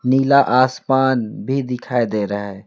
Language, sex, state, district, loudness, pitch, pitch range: Hindi, male, West Bengal, Alipurduar, -18 LUFS, 125 Hz, 110-130 Hz